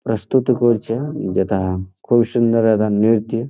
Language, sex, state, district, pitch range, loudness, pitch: Bengali, male, West Bengal, Jhargram, 100-120 Hz, -18 LUFS, 115 Hz